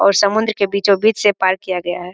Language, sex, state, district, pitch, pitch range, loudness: Hindi, male, Bihar, Jamui, 200 Hz, 185-205 Hz, -16 LUFS